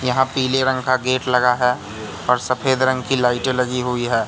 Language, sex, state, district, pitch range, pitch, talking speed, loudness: Hindi, male, Madhya Pradesh, Katni, 125-130 Hz, 125 Hz, 210 wpm, -19 LUFS